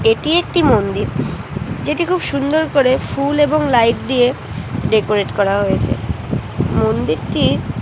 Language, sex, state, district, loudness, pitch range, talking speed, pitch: Bengali, female, West Bengal, North 24 Parganas, -17 LUFS, 195-295 Hz, 125 wpm, 245 Hz